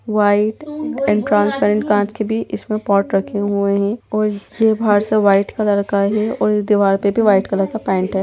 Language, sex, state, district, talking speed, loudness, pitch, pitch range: Hindi, female, Bihar, Gopalganj, 210 wpm, -17 LUFS, 205 Hz, 200-215 Hz